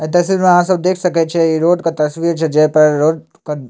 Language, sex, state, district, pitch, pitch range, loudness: Maithili, male, Bihar, Samastipur, 165 Hz, 155-175 Hz, -13 LUFS